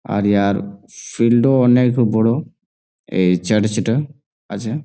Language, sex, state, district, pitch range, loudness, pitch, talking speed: Bengali, male, West Bengal, Jalpaiguri, 100-125 Hz, -17 LUFS, 115 Hz, 150 wpm